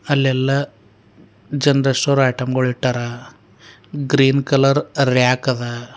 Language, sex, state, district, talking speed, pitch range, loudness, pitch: Kannada, male, Karnataka, Bidar, 90 wpm, 125-140 Hz, -17 LUFS, 135 Hz